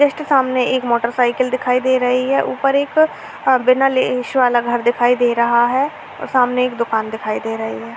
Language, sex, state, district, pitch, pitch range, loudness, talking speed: Hindi, female, Uttar Pradesh, Gorakhpur, 250 Hz, 240-260 Hz, -16 LUFS, 175 wpm